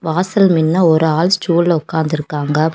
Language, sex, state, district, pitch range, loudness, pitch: Tamil, female, Tamil Nadu, Kanyakumari, 160-175 Hz, -14 LUFS, 160 Hz